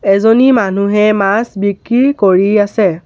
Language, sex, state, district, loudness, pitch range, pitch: Assamese, male, Assam, Sonitpur, -11 LUFS, 195-225 Hz, 205 Hz